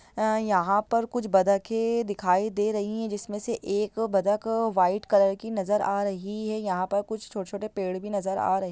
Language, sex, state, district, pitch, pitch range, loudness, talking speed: Hindi, female, Bihar, Sitamarhi, 205 Hz, 195-220 Hz, -26 LUFS, 200 wpm